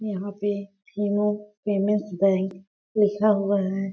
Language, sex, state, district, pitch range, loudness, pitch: Hindi, female, Chhattisgarh, Balrampur, 195-210 Hz, -25 LUFS, 205 Hz